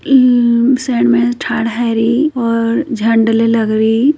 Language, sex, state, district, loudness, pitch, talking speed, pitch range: Hindi, female, Uttarakhand, Uttarkashi, -13 LUFS, 230 Hz, 100 wpm, 225-250 Hz